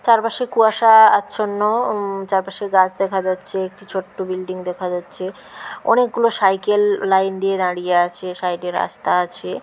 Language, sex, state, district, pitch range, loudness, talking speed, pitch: Bengali, female, West Bengal, Paschim Medinipur, 185-210 Hz, -18 LUFS, 135 wpm, 195 Hz